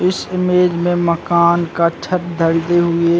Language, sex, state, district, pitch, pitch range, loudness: Hindi, male, Chhattisgarh, Bilaspur, 170 Hz, 170-180 Hz, -15 LUFS